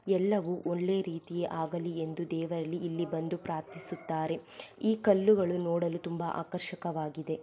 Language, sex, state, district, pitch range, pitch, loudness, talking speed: Kannada, female, Karnataka, Belgaum, 165-180 Hz, 170 Hz, -32 LUFS, 120 wpm